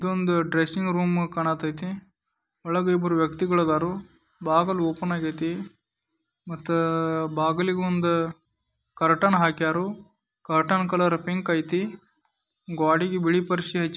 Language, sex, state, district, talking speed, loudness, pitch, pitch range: Kannada, male, Karnataka, Dharwad, 110 wpm, -25 LUFS, 170 Hz, 165-185 Hz